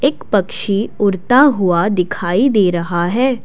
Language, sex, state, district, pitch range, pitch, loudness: Hindi, female, Assam, Kamrup Metropolitan, 180-250 Hz, 200 Hz, -15 LUFS